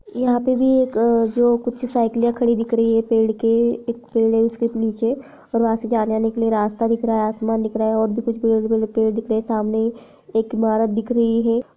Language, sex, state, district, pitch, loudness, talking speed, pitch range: Hindi, female, Jharkhand, Jamtara, 230 Hz, -19 LUFS, 225 wpm, 225-235 Hz